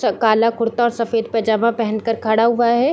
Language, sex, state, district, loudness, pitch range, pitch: Hindi, female, Chhattisgarh, Bilaspur, -17 LUFS, 225-235 Hz, 230 Hz